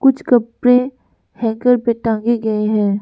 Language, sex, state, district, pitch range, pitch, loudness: Hindi, female, Arunachal Pradesh, Lower Dibang Valley, 220-250 Hz, 235 Hz, -16 LUFS